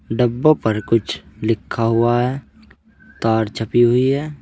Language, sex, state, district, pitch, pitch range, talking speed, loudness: Hindi, male, Uttar Pradesh, Saharanpur, 120 Hz, 110-130 Hz, 135 wpm, -18 LUFS